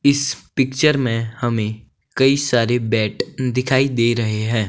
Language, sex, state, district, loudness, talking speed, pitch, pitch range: Hindi, male, Himachal Pradesh, Shimla, -19 LUFS, 140 wpm, 120 Hz, 115-135 Hz